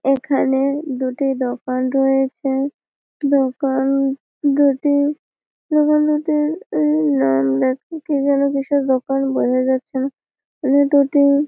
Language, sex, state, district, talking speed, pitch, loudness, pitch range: Bengali, female, West Bengal, Malda, 110 wpm, 275 Hz, -18 LUFS, 260-285 Hz